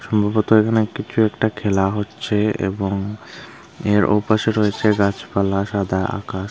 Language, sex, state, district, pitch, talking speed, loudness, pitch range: Bengali, female, Tripura, Unakoti, 105 Hz, 130 wpm, -19 LUFS, 100-110 Hz